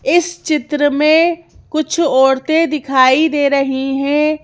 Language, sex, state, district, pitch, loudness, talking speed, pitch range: Hindi, female, Madhya Pradesh, Bhopal, 300 Hz, -14 LUFS, 120 wpm, 275-320 Hz